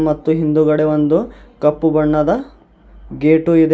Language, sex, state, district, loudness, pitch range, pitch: Kannada, male, Karnataka, Bidar, -15 LUFS, 150-160 Hz, 155 Hz